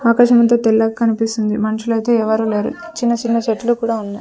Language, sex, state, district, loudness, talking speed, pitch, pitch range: Telugu, female, Andhra Pradesh, Sri Satya Sai, -16 LUFS, 155 wpm, 230 Hz, 220-235 Hz